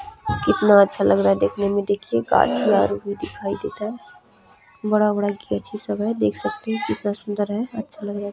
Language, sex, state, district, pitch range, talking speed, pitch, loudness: Maithili, female, Bihar, Supaul, 185-215 Hz, 210 wpm, 205 Hz, -21 LUFS